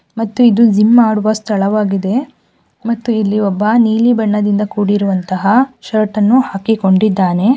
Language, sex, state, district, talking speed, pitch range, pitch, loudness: Kannada, female, Karnataka, Gulbarga, 110 wpm, 205-230 Hz, 215 Hz, -13 LUFS